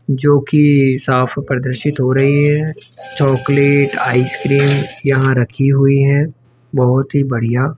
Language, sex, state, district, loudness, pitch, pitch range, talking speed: Hindi, male, Rajasthan, Jaipur, -14 LUFS, 135 Hz, 130-140 Hz, 125 wpm